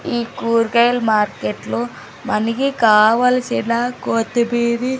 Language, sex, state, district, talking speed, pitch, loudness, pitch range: Telugu, female, Andhra Pradesh, Sri Satya Sai, 70 wpm, 230 Hz, -17 LUFS, 210-240 Hz